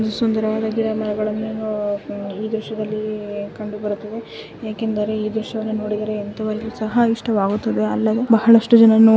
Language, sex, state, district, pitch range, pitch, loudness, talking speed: Kannada, female, Karnataka, Shimoga, 210-220 Hz, 215 Hz, -20 LUFS, 110 wpm